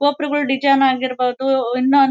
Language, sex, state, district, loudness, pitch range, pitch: Kannada, female, Karnataka, Bellary, -17 LUFS, 260-280 Hz, 270 Hz